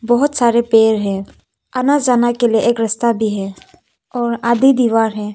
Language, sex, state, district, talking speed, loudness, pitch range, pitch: Hindi, female, Arunachal Pradesh, Papum Pare, 180 wpm, -15 LUFS, 220-245 Hz, 235 Hz